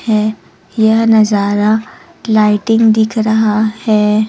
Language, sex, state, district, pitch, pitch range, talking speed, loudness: Hindi, female, Chhattisgarh, Raipur, 215 Hz, 210-220 Hz, 100 wpm, -12 LUFS